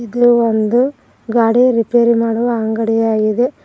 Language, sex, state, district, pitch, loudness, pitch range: Kannada, female, Karnataka, Koppal, 235 Hz, -14 LUFS, 225-240 Hz